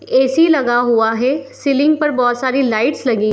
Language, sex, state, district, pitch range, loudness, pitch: Hindi, female, Bihar, Darbhanga, 240-280 Hz, -15 LUFS, 260 Hz